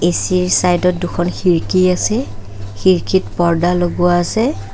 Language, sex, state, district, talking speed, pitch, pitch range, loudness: Assamese, female, Assam, Kamrup Metropolitan, 140 wpm, 175 Hz, 170-180 Hz, -15 LUFS